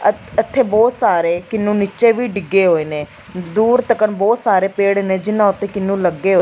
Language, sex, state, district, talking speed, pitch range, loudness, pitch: Punjabi, female, Punjab, Fazilka, 195 wpm, 190-220 Hz, -16 LUFS, 200 Hz